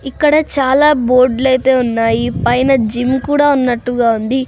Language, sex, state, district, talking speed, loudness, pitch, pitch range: Telugu, male, Andhra Pradesh, Sri Satya Sai, 135 wpm, -13 LUFS, 260 Hz, 245-270 Hz